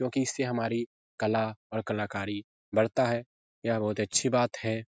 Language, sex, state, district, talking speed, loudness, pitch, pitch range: Hindi, male, Bihar, Jahanabad, 160 wpm, -30 LUFS, 110 Hz, 105-120 Hz